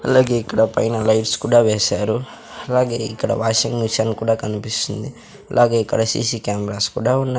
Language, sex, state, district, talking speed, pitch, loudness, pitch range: Telugu, male, Andhra Pradesh, Sri Satya Sai, 145 wpm, 115 Hz, -19 LUFS, 110-120 Hz